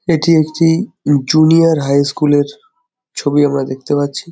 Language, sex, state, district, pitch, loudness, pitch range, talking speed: Bengali, male, West Bengal, Jhargram, 155 Hz, -13 LUFS, 145-165 Hz, 140 wpm